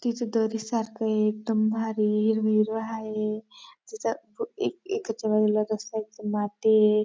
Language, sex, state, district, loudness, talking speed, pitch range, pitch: Marathi, female, Maharashtra, Dhule, -27 LUFS, 120 wpm, 215-230 Hz, 220 Hz